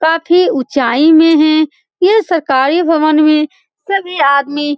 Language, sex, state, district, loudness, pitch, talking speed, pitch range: Hindi, female, Bihar, Saran, -11 LUFS, 310 Hz, 150 wpm, 290-345 Hz